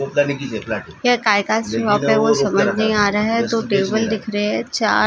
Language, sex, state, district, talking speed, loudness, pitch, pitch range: Hindi, female, Maharashtra, Gondia, 165 wpm, -18 LUFS, 210 Hz, 200-220 Hz